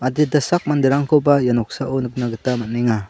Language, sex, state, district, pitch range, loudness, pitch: Garo, male, Meghalaya, South Garo Hills, 120-145 Hz, -18 LUFS, 130 Hz